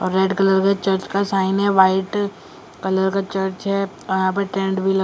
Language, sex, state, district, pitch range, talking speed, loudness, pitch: Hindi, female, Delhi, New Delhi, 190-195 Hz, 215 wpm, -19 LUFS, 195 Hz